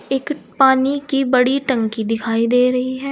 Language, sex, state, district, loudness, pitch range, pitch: Hindi, female, Uttar Pradesh, Saharanpur, -17 LUFS, 245-270 Hz, 260 Hz